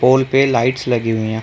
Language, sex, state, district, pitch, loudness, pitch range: Hindi, male, Chhattisgarh, Korba, 125 Hz, -16 LUFS, 115-130 Hz